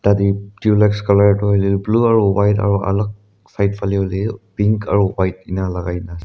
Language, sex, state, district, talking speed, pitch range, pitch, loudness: Nagamese, male, Nagaland, Dimapur, 200 wpm, 100-105 Hz, 100 Hz, -17 LUFS